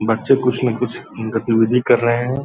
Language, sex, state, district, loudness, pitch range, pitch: Hindi, male, Bihar, Purnia, -17 LUFS, 115-125 Hz, 120 Hz